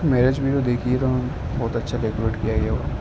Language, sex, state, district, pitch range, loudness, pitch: Hindi, male, Uttar Pradesh, Ghazipur, 110-130 Hz, -23 LUFS, 120 Hz